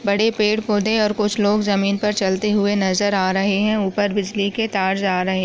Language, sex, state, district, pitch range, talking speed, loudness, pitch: Hindi, female, Chhattisgarh, Raigarh, 195-210 Hz, 200 wpm, -19 LUFS, 205 Hz